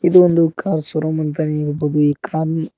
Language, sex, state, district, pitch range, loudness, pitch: Kannada, male, Karnataka, Koppal, 150-165 Hz, -17 LUFS, 155 Hz